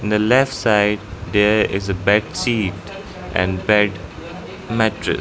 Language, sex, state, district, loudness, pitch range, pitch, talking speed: English, male, Arunachal Pradesh, Lower Dibang Valley, -18 LUFS, 95-110 Hz, 105 Hz, 150 wpm